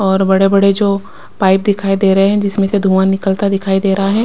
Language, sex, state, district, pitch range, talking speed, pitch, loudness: Hindi, female, Maharashtra, Washim, 195-200 Hz, 225 wpm, 195 Hz, -13 LUFS